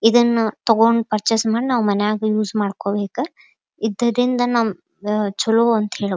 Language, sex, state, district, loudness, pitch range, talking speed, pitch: Kannada, female, Karnataka, Dharwad, -19 LUFS, 210-235 Hz, 125 wpm, 225 Hz